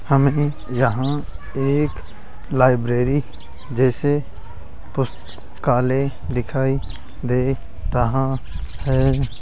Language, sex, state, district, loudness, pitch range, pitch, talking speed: Hindi, male, Rajasthan, Jaipur, -21 LUFS, 120-135 Hz, 130 Hz, 65 wpm